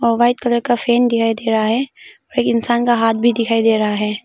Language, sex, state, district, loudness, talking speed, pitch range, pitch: Hindi, female, Arunachal Pradesh, Papum Pare, -16 LUFS, 255 wpm, 225-240 Hz, 235 Hz